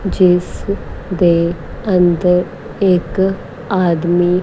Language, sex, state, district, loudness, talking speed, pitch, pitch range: Punjabi, female, Punjab, Kapurthala, -15 LUFS, 70 wpm, 180 Hz, 175-190 Hz